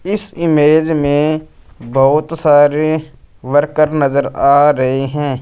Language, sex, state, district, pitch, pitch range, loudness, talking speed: Hindi, male, Punjab, Fazilka, 150 Hz, 140-155 Hz, -13 LUFS, 110 wpm